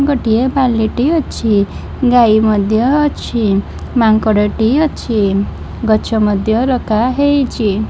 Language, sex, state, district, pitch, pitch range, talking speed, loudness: Odia, female, Odisha, Malkangiri, 225 Hz, 215-255 Hz, 100 wpm, -14 LUFS